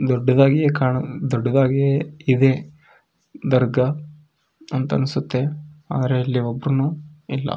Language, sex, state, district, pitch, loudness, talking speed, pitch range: Kannada, male, Karnataka, Raichur, 135 Hz, -20 LUFS, 85 wpm, 130-150 Hz